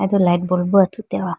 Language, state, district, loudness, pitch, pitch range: Idu Mishmi, Arunachal Pradesh, Lower Dibang Valley, -17 LUFS, 190 Hz, 180-200 Hz